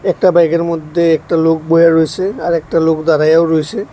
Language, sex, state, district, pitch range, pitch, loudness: Bengali, male, Tripura, West Tripura, 160-170 Hz, 165 Hz, -13 LUFS